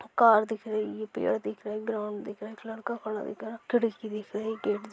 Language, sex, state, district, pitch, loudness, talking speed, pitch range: Hindi, female, Maharashtra, Nagpur, 215 Hz, -30 LUFS, 290 wpm, 205-220 Hz